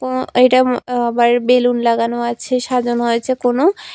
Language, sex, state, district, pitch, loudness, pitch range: Bengali, female, Tripura, West Tripura, 245 Hz, -15 LUFS, 240-255 Hz